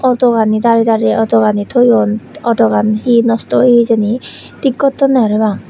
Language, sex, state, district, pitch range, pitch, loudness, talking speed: Chakma, female, Tripura, West Tripura, 220-245 Hz, 230 Hz, -12 LUFS, 170 wpm